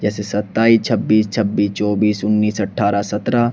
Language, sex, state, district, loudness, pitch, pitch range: Hindi, male, Uttar Pradesh, Shamli, -17 LUFS, 105 Hz, 105-110 Hz